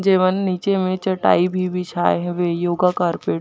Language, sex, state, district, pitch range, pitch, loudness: Chhattisgarhi, female, Chhattisgarh, Jashpur, 175-185 Hz, 180 Hz, -19 LUFS